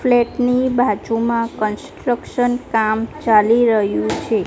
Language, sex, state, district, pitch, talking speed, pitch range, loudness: Gujarati, female, Gujarat, Gandhinagar, 230 Hz, 105 wpm, 215-245 Hz, -17 LUFS